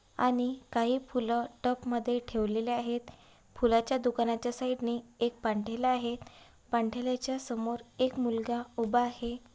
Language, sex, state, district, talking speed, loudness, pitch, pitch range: Marathi, female, Maharashtra, Chandrapur, 140 wpm, -32 LUFS, 240 Hz, 235-250 Hz